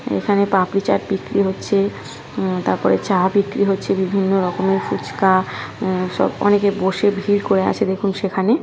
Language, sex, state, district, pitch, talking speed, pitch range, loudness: Bengali, female, West Bengal, North 24 Parganas, 195 Hz, 155 wpm, 190-200 Hz, -18 LUFS